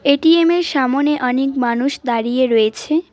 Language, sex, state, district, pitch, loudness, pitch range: Bengali, female, West Bengal, Cooch Behar, 270 Hz, -16 LUFS, 245-305 Hz